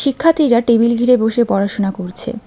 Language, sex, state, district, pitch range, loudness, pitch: Bengali, female, West Bengal, Alipurduar, 205-250 Hz, -15 LUFS, 235 Hz